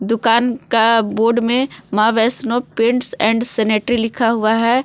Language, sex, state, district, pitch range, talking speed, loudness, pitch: Hindi, female, Jharkhand, Palamu, 225-240 Hz, 150 wpm, -16 LUFS, 230 Hz